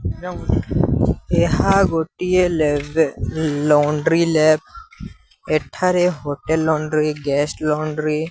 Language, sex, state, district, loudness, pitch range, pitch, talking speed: Odia, male, Odisha, Sambalpur, -19 LUFS, 150-165 Hz, 155 Hz, 85 wpm